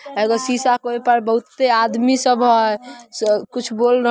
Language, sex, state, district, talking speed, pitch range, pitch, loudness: Magahi, female, Bihar, Samastipur, 190 wpm, 225-245 Hz, 240 Hz, -17 LUFS